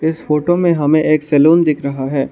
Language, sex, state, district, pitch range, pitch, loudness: Hindi, male, Arunachal Pradesh, Lower Dibang Valley, 145-160 Hz, 155 Hz, -14 LUFS